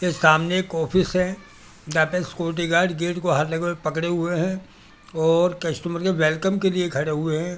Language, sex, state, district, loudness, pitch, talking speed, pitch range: Hindi, male, Delhi, New Delhi, -22 LUFS, 170 Hz, 215 wpm, 160-180 Hz